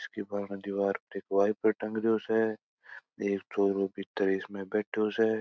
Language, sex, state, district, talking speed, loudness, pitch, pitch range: Marwari, male, Rajasthan, Churu, 165 wpm, -31 LUFS, 100 Hz, 100-110 Hz